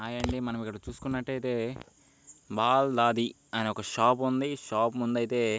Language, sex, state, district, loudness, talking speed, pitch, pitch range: Telugu, male, Andhra Pradesh, Guntur, -29 LUFS, 150 wpm, 120 Hz, 115-130 Hz